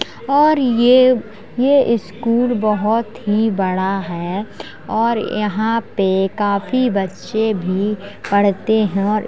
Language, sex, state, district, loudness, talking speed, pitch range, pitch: Hindi, female, Uttar Pradesh, Jalaun, -17 LUFS, 115 wpm, 200-235 Hz, 215 Hz